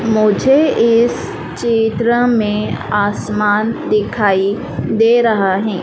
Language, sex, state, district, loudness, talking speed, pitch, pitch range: Hindi, female, Madhya Pradesh, Dhar, -14 LUFS, 90 wpm, 215 Hz, 210-230 Hz